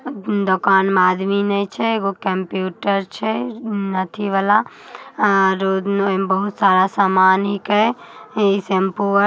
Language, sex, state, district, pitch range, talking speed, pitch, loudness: Magahi, female, Bihar, Samastipur, 190-210 Hz, 130 wpm, 200 Hz, -18 LUFS